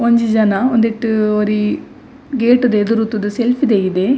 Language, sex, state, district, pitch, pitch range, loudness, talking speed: Tulu, female, Karnataka, Dakshina Kannada, 225 Hz, 210-245 Hz, -15 LUFS, 130 wpm